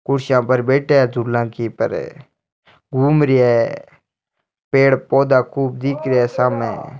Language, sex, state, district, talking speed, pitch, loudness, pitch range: Marwari, male, Rajasthan, Nagaur, 145 wpm, 130 Hz, -17 LUFS, 125-135 Hz